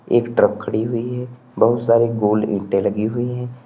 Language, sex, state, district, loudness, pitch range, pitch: Hindi, male, Uttar Pradesh, Lalitpur, -19 LUFS, 110-125 Hz, 115 Hz